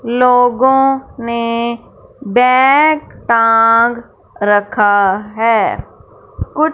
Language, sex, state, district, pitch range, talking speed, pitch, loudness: Hindi, female, Punjab, Fazilka, 225-255 Hz, 60 wpm, 235 Hz, -12 LUFS